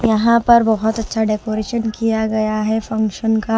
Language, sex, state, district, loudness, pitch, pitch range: Hindi, female, Himachal Pradesh, Shimla, -17 LUFS, 220 Hz, 215-225 Hz